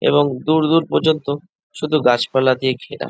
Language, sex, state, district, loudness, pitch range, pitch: Bengali, male, West Bengal, Jhargram, -18 LUFS, 130-155 Hz, 145 Hz